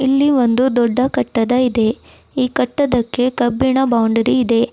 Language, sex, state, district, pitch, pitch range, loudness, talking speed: Kannada, female, Karnataka, Bidar, 250 Hz, 235-260 Hz, -16 LUFS, 115 wpm